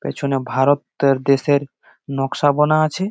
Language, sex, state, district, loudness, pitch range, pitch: Bengali, male, West Bengal, Malda, -18 LUFS, 135-150 Hz, 140 Hz